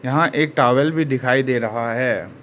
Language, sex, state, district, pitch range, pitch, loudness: Hindi, male, Arunachal Pradesh, Lower Dibang Valley, 125-155 Hz, 130 Hz, -19 LUFS